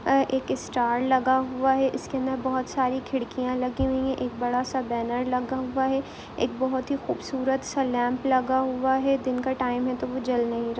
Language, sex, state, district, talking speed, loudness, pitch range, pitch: Hindi, female, Jharkhand, Sahebganj, 220 wpm, -26 LUFS, 250-265 Hz, 260 Hz